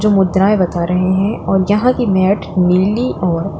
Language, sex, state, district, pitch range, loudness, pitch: Hindi, female, Uttar Pradesh, Lalitpur, 180-205 Hz, -14 LUFS, 190 Hz